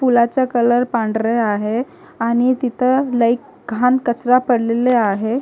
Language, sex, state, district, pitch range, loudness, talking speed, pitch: Marathi, female, Maharashtra, Gondia, 230-255 Hz, -17 LUFS, 120 wpm, 240 Hz